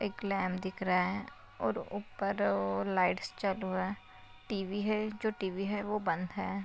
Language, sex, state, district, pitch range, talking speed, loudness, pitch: Hindi, female, Maharashtra, Nagpur, 180-205 Hz, 170 wpm, -34 LUFS, 195 Hz